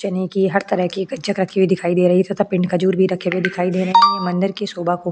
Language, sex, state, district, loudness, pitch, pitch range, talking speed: Hindi, female, Goa, North and South Goa, -18 LUFS, 190 Hz, 180-195 Hz, 325 wpm